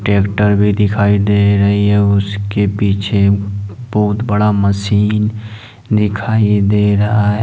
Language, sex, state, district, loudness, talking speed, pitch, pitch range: Hindi, male, Jharkhand, Ranchi, -14 LUFS, 120 wpm, 105 Hz, 100-105 Hz